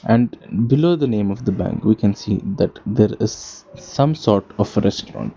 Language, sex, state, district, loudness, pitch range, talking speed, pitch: English, male, Karnataka, Bangalore, -19 LUFS, 105-140 Hz, 200 wpm, 110 Hz